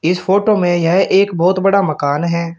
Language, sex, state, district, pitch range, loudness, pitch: Hindi, male, Uttar Pradesh, Shamli, 170-195 Hz, -14 LUFS, 180 Hz